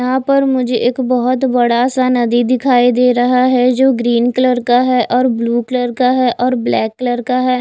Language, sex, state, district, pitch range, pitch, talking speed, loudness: Hindi, female, Chhattisgarh, Raipur, 245-255 Hz, 250 Hz, 210 wpm, -13 LUFS